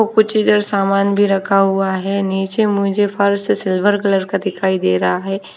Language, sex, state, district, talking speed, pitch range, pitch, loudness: Hindi, female, Odisha, Nuapada, 195 wpm, 195-205 Hz, 195 Hz, -16 LUFS